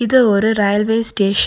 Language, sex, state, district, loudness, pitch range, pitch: Tamil, female, Tamil Nadu, Nilgiris, -15 LUFS, 205-225 Hz, 215 Hz